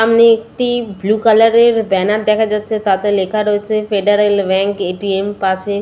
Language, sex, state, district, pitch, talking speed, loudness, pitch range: Bengali, female, West Bengal, Purulia, 210 Hz, 155 wpm, -14 LUFS, 200-220 Hz